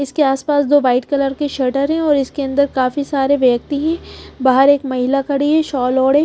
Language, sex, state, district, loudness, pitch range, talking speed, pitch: Hindi, female, Punjab, Pathankot, -16 LUFS, 265-290 Hz, 210 wpm, 280 Hz